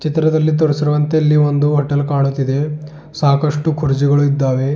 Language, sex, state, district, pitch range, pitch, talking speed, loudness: Kannada, male, Karnataka, Bidar, 140-155 Hz, 150 Hz, 115 wpm, -15 LUFS